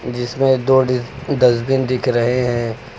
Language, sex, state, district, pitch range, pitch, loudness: Hindi, male, Uttar Pradesh, Lucknow, 120-130 Hz, 125 Hz, -17 LUFS